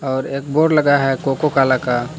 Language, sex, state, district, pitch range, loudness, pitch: Hindi, male, Jharkhand, Palamu, 130-145 Hz, -17 LUFS, 135 Hz